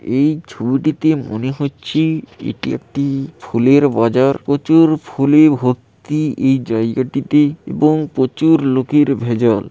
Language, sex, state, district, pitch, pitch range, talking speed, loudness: Bengali, male, West Bengal, Paschim Medinipur, 140 Hz, 125-150 Hz, 105 wpm, -15 LUFS